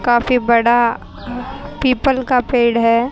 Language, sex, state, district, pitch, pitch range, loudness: Hindi, female, Haryana, Jhajjar, 240 Hz, 235-255 Hz, -15 LUFS